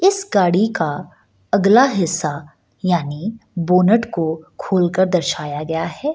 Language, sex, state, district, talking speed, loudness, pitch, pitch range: Hindi, female, Bihar, Gaya, 115 wpm, -18 LUFS, 175 Hz, 160-205 Hz